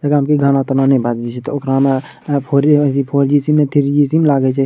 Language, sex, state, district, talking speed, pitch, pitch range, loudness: Maithili, male, Bihar, Madhepura, 130 wpm, 140 Hz, 135-145 Hz, -14 LUFS